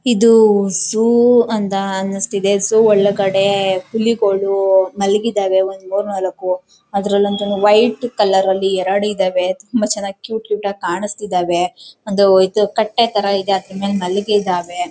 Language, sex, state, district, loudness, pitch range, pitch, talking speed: Kannada, female, Karnataka, Chamarajanagar, -16 LUFS, 190-210 Hz, 200 Hz, 120 wpm